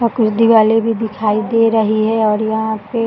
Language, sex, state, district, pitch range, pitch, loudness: Hindi, female, Bihar, Jahanabad, 215-225 Hz, 220 Hz, -14 LUFS